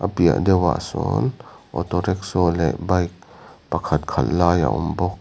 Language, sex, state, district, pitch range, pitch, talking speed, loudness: Mizo, male, Mizoram, Aizawl, 85-90 Hz, 90 Hz, 150 wpm, -21 LUFS